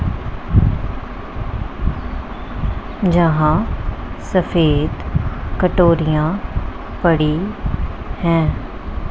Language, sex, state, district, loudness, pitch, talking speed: Hindi, female, Punjab, Pathankot, -19 LUFS, 155 Hz, 35 wpm